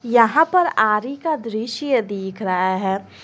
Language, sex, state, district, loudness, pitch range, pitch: Hindi, female, Jharkhand, Garhwa, -19 LUFS, 195-280 Hz, 230 Hz